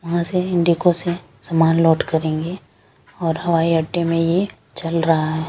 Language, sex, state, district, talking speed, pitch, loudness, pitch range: Hindi, female, Chandigarh, Chandigarh, 155 wpm, 165 Hz, -19 LUFS, 160-175 Hz